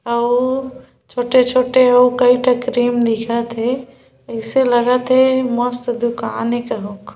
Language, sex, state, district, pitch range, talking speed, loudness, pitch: Hindi, female, Chhattisgarh, Bilaspur, 240-255 Hz, 150 wpm, -16 LUFS, 245 Hz